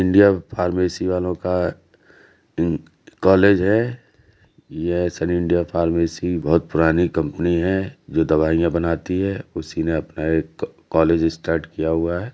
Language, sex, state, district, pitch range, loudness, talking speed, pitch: Hindi, male, Uttar Pradesh, Jalaun, 80-95 Hz, -20 LUFS, 125 wpm, 85 Hz